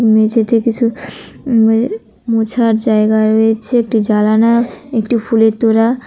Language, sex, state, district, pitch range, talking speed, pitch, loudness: Bengali, female, West Bengal, Cooch Behar, 220-235 Hz, 110 wpm, 225 Hz, -13 LUFS